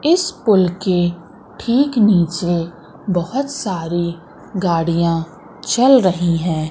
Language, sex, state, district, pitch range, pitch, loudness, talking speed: Hindi, female, Madhya Pradesh, Katni, 170-220 Hz, 175 Hz, -17 LUFS, 100 wpm